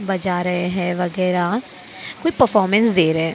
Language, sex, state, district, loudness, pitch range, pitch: Hindi, female, Maharashtra, Mumbai Suburban, -19 LUFS, 180-210 Hz, 185 Hz